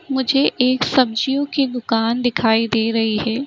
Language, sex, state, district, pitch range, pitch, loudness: Hindi, female, Uttar Pradesh, Etah, 225-270 Hz, 245 Hz, -18 LUFS